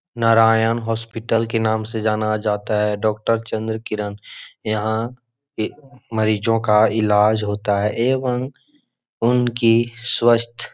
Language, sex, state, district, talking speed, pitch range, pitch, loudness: Hindi, male, Bihar, Jahanabad, 110 wpm, 110-120 Hz, 115 Hz, -19 LUFS